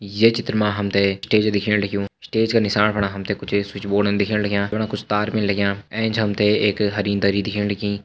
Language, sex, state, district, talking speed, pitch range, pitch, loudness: Hindi, male, Uttarakhand, Uttarkashi, 215 wpm, 100-105 Hz, 105 Hz, -20 LUFS